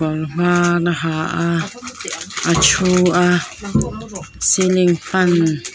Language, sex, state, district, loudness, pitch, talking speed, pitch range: Mizo, female, Mizoram, Aizawl, -16 LUFS, 175 Hz, 115 wpm, 165-180 Hz